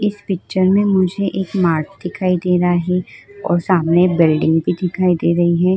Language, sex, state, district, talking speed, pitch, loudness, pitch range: Hindi, female, Uttar Pradesh, Muzaffarnagar, 185 wpm, 180 Hz, -16 LUFS, 175-190 Hz